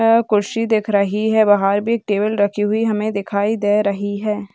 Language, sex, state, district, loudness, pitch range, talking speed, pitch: Hindi, female, Bihar, Gaya, -18 LUFS, 205-220 Hz, 200 wpm, 210 Hz